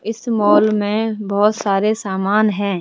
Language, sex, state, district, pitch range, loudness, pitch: Hindi, male, Rajasthan, Jaipur, 200-215 Hz, -17 LUFS, 210 Hz